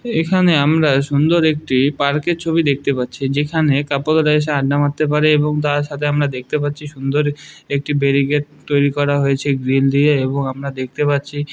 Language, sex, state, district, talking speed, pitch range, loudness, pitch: Bengali, male, West Bengal, Dakshin Dinajpur, 185 wpm, 140-150 Hz, -17 LUFS, 145 Hz